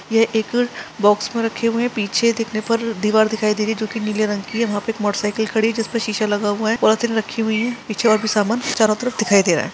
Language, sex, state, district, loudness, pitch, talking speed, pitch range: Hindi, female, Chhattisgarh, Sarguja, -19 LUFS, 220 Hz, 285 wpm, 210-230 Hz